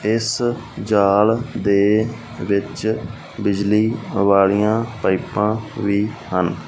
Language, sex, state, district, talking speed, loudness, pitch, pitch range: Punjabi, male, Punjab, Fazilka, 90 wpm, -19 LUFS, 105 Hz, 100-110 Hz